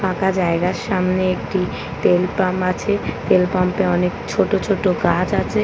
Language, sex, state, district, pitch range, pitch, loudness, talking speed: Bengali, female, West Bengal, Paschim Medinipur, 180-190 Hz, 185 Hz, -19 LUFS, 160 wpm